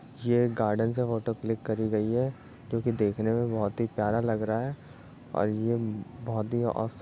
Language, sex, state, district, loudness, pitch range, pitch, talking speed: Hindi, male, Uttar Pradesh, Jyotiba Phule Nagar, -29 LUFS, 110-120 Hz, 115 Hz, 215 wpm